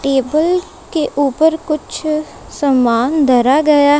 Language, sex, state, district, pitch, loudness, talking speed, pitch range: Hindi, female, Punjab, Kapurthala, 290 Hz, -14 LUFS, 105 wpm, 270-310 Hz